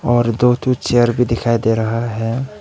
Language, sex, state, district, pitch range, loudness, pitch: Hindi, male, Arunachal Pradesh, Papum Pare, 115-125 Hz, -16 LUFS, 120 Hz